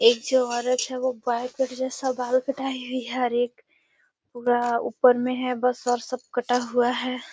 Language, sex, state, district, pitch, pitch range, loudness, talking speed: Hindi, female, Bihar, Gaya, 250 Hz, 245-255 Hz, -25 LUFS, 190 wpm